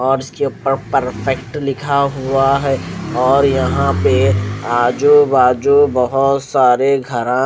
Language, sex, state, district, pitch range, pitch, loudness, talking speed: Hindi, male, Odisha, Khordha, 125-140 Hz, 135 Hz, -15 LUFS, 130 wpm